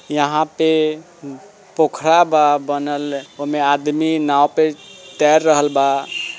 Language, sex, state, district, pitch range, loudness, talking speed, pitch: Bajjika, male, Bihar, Vaishali, 145-155 Hz, -17 LUFS, 110 wpm, 150 Hz